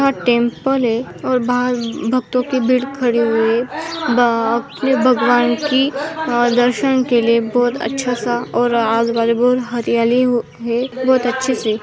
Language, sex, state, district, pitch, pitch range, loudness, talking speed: Hindi, female, Maharashtra, Aurangabad, 245 Hz, 235-260 Hz, -16 LUFS, 140 wpm